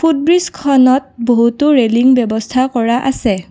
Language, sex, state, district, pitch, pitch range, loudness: Assamese, female, Assam, Kamrup Metropolitan, 255 Hz, 235-275 Hz, -13 LUFS